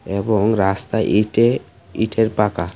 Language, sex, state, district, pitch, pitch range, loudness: Bengali, male, Tripura, West Tripura, 105 Hz, 100-110 Hz, -18 LUFS